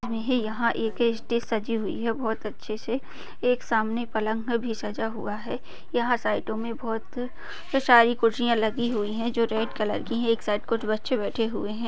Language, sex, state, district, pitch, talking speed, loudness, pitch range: Hindi, female, Maharashtra, Sindhudurg, 230 Hz, 195 wpm, -26 LUFS, 220-240 Hz